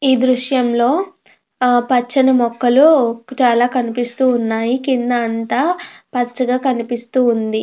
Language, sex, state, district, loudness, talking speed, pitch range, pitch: Telugu, female, Andhra Pradesh, Krishna, -16 LUFS, 95 wpm, 240-260 Hz, 250 Hz